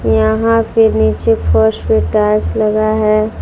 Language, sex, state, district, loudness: Hindi, female, Jharkhand, Palamu, -13 LUFS